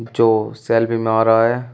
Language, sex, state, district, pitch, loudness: Hindi, male, Uttar Pradesh, Shamli, 115 Hz, -16 LUFS